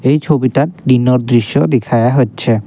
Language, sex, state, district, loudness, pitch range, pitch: Bengali, male, Assam, Kamrup Metropolitan, -13 LUFS, 120-140 Hz, 125 Hz